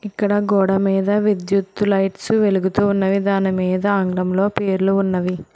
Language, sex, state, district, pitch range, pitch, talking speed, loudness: Telugu, female, Telangana, Hyderabad, 190-205 Hz, 195 Hz, 120 wpm, -18 LUFS